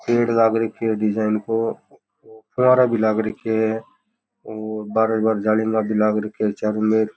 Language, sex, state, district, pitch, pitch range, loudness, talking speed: Rajasthani, male, Rajasthan, Nagaur, 110 Hz, 110-115 Hz, -20 LUFS, 170 wpm